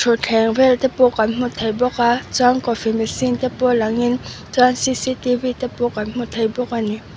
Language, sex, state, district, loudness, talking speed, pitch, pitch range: Mizo, female, Mizoram, Aizawl, -18 LUFS, 220 wpm, 245 Hz, 230-250 Hz